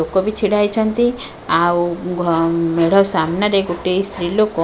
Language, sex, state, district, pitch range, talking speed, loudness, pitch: Odia, female, Odisha, Khordha, 170-205 Hz, 155 wpm, -17 LUFS, 180 Hz